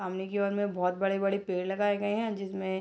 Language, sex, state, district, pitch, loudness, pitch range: Hindi, female, Bihar, Purnia, 195 Hz, -30 LUFS, 190-205 Hz